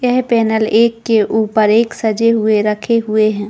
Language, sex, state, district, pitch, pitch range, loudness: Hindi, female, Chhattisgarh, Balrampur, 220 Hz, 215-230 Hz, -14 LUFS